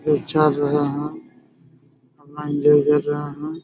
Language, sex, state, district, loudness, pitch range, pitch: Hindi, male, Chhattisgarh, Raigarh, -20 LUFS, 145-150 Hz, 145 Hz